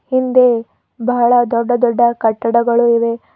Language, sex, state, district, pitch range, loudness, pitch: Kannada, female, Karnataka, Bidar, 235-245 Hz, -14 LUFS, 235 Hz